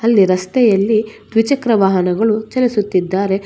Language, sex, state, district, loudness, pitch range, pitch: Kannada, female, Karnataka, Bangalore, -15 LUFS, 195-225 Hz, 215 Hz